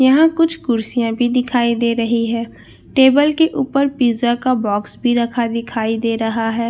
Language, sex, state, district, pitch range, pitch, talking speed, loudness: Hindi, female, Bihar, Katihar, 230-265 Hz, 240 Hz, 180 wpm, -17 LUFS